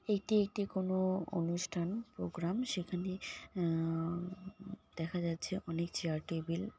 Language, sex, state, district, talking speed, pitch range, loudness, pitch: Bengali, female, West Bengal, Jalpaiguri, 115 wpm, 170-195 Hz, -37 LUFS, 180 Hz